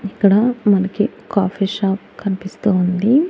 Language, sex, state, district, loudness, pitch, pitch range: Telugu, female, Andhra Pradesh, Annamaya, -17 LUFS, 200 Hz, 190-210 Hz